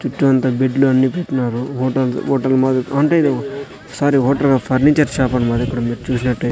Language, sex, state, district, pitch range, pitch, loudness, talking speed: Telugu, male, Andhra Pradesh, Sri Satya Sai, 125-140 Hz, 130 Hz, -16 LUFS, 175 wpm